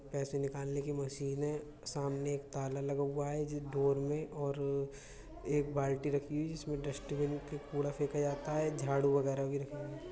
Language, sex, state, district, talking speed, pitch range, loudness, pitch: Hindi, male, Uttar Pradesh, Budaun, 190 wpm, 140-145 Hz, -37 LUFS, 140 Hz